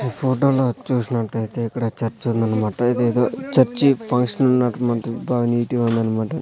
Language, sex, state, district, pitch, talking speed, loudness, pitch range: Telugu, male, Andhra Pradesh, Sri Satya Sai, 120 Hz, 150 wpm, -20 LUFS, 115-125 Hz